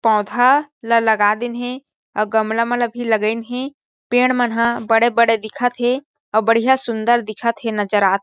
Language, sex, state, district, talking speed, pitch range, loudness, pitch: Chhattisgarhi, female, Chhattisgarh, Jashpur, 190 wpm, 220-245 Hz, -18 LUFS, 235 Hz